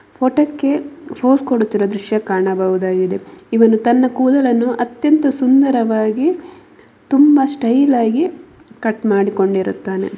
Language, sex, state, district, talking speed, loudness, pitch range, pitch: Kannada, female, Karnataka, Mysore, 90 wpm, -15 LUFS, 215-285 Hz, 245 Hz